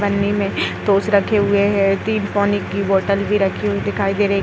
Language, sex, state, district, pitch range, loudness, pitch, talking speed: Hindi, female, Uttar Pradesh, Etah, 195-205 Hz, -18 LUFS, 200 Hz, 215 wpm